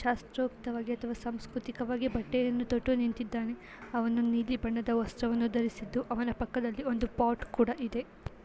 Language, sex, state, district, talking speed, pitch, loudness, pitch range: Kannada, female, Karnataka, Belgaum, 120 wpm, 240 Hz, -33 LUFS, 235-245 Hz